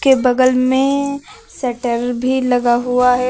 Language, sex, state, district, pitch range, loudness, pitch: Hindi, female, Uttar Pradesh, Lucknow, 250-265 Hz, -16 LUFS, 255 Hz